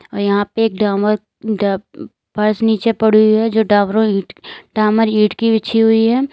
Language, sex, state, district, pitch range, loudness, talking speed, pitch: Hindi, female, Uttar Pradesh, Lalitpur, 210-225 Hz, -15 LUFS, 190 wpm, 215 Hz